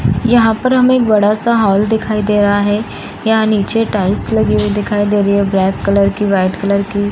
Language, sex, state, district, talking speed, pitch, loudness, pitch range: Hindi, female, Bihar, East Champaran, 220 wpm, 205 Hz, -13 LUFS, 200-220 Hz